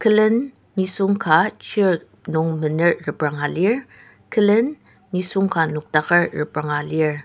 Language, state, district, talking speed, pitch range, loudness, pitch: Ao, Nagaland, Dimapur, 115 wpm, 155-200 Hz, -20 LUFS, 175 Hz